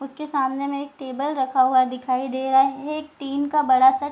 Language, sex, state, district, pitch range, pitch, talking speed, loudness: Hindi, female, Bihar, Sitamarhi, 265-300 Hz, 275 Hz, 260 wpm, -22 LUFS